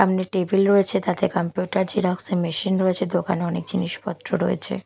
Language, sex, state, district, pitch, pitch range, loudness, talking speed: Bengali, female, Odisha, Malkangiri, 185 Hz, 175-195 Hz, -22 LUFS, 160 wpm